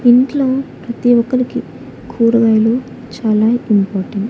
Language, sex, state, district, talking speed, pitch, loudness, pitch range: Telugu, female, Andhra Pradesh, Annamaya, 85 wpm, 235 Hz, -14 LUFS, 220-250 Hz